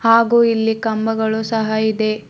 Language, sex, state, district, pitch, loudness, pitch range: Kannada, female, Karnataka, Bidar, 220 Hz, -17 LUFS, 220-230 Hz